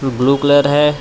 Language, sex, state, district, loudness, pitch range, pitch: Hindi, male, Jharkhand, Palamu, -13 LUFS, 135-145 Hz, 145 Hz